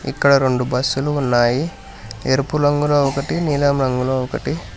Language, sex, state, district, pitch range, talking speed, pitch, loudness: Telugu, male, Telangana, Hyderabad, 125-145 Hz, 140 wpm, 135 Hz, -18 LUFS